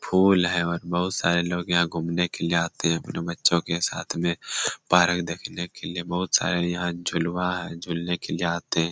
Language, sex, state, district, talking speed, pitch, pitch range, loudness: Hindi, male, Jharkhand, Sahebganj, 210 wpm, 85 Hz, 85-90 Hz, -25 LUFS